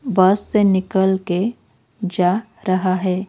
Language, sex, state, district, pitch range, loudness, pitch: Hindi, female, Odisha, Malkangiri, 185-205 Hz, -18 LUFS, 190 Hz